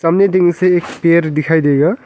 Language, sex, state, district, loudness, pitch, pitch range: Hindi, male, Arunachal Pradesh, Longding, -13 LUFS, 170 Hz, 155-180 Hz